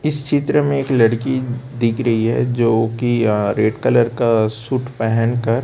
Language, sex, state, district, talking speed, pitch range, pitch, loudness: Hindi, male, Chhattisgarh, Raipur, 160 wpm, 115-130 Hz, 120 Hz, -17 LUFS